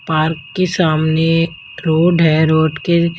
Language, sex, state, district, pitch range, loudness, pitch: Hindi, female, Haryana, Jhajjar, 155-170 Hz, -15 LUFS, 160 Hz